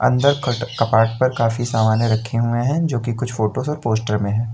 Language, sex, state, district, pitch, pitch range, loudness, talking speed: Hindi, male, Uttar Pradesh, Lalitpur, 115 Hz, 110-125 Hz, -19 LUFS, 225 wpm